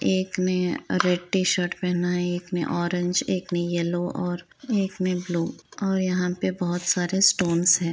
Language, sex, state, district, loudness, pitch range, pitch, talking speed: Hindi, female, Uttar Pradesh, Varanasi, -24 LUFS, 175-185 Hz, 180 Hz, 175 wpm